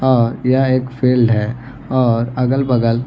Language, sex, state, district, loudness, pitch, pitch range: Hindi, male, Bihar, Gaya, -16 LUFS, 125 Hz, 120-130 Hz